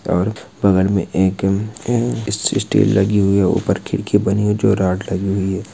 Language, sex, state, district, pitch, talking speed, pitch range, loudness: Hindi, male, Bihar, Saran, 100 Hz, 210 wpm, 95-105 Hz, -17 LUFS